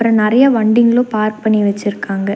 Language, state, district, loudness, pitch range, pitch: Tamil, Tamil Nadu, Nilgiris, -13 LUFS, 205-230 Hz, 215 Hz